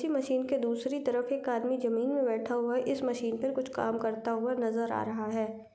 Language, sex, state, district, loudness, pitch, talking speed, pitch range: Hindi, female, Chhattisgarh, Raigarh, -31 LUFS, 245 Hz, 240 wpm, 230-260 Hz